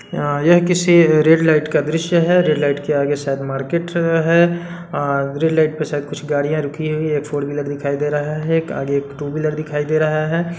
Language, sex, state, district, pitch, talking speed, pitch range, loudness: Hindi, male, Bihar, Sitamarhi, 155 Hz, 225 wpm, 145-165 Hz, -17 LUFS